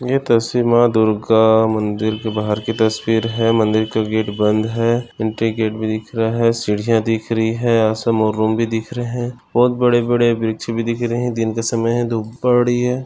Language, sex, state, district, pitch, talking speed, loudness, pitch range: Hindi, male, Maharashtra, Nagpur, 115 Hz, 210 wpm, -17 LUFS, 110-120 Hz